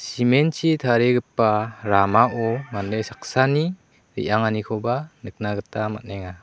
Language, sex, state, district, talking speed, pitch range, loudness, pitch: Garo, male, Meghalaya, South Garo Hills, 85 wpm, 105-125 Hz, -22 LUFS, 115 Hz